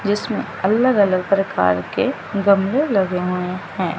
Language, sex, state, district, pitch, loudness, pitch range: Hindi, female, Chandigarh, Chandigarh, 195 Hz, -19 LUFS, 180-205 Hz